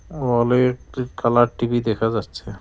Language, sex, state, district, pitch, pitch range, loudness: Bengali, male, West Bengal, Cooch Behar, 120 Hz, 115-125 Hz, -20 LUFS